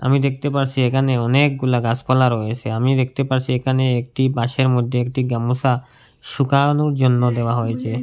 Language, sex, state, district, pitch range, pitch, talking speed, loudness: Bengali, male, Assam, Hailakandi, 120-135 Hz, 130 Hz, 150 wpm, -19 LUFS